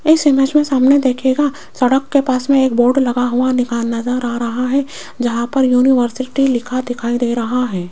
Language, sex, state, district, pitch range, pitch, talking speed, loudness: Hindi, female, Rajasthan, Jaipur, 245-270 Hz, 255 Hz, 190 wpm, -15 LUFS